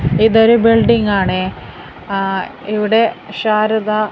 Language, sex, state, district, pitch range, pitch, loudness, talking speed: Malayalam, female, Kerala, Kasaragod, 195-225 Hz, 215 Hz, -14 LUFS, 85 wpm